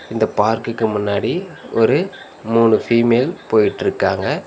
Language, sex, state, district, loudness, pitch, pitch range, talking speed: Tamil, male, Tamil Nadu, Nilgiris, -17 LUFS, 115 Hz, 110-115 Hz, 95 wpm